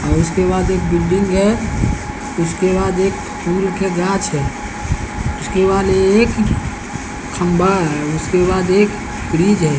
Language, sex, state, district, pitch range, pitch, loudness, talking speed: Hindi, male, Bihar, Patna, 165-195 Hz, 185 Hz, -17 LUFS, 135 wpm